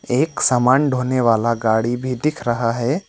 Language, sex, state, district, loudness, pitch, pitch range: Hindi, male, West Bengal, Alipurduar, -18 LUFS, 120 Hz, 115-130 Hz